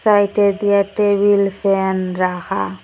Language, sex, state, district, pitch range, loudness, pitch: Bengali, female, Assam, Hailakandi, 185-205 Hz, -17 LUFS, 200 Hz